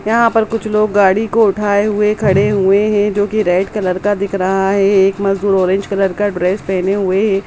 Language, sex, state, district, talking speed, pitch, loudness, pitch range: Hindi, female, Bihar, Samastipur, 235 wpm, 200 Hz, -14 LUFS, 195-210 Hz